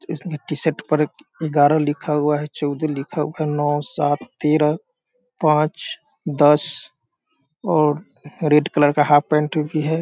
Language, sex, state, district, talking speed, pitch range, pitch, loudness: Hindi, male, Bihar, Sitamarhi, 140 wpm, 150-160 Hz, 150 Hz, -20 LUFS